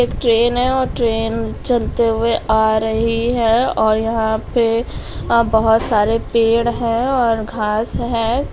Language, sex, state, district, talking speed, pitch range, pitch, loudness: Hindi, female, Bihar, Gopalganj, 140 wpm, 225-235 Hz, 230 Hz, -16 LUFS